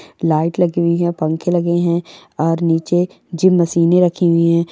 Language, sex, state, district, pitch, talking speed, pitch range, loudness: Angika, female, Bihar, Madhepura, 170 Hz, 190 wpm, 165-175 Hz, -16 LUFS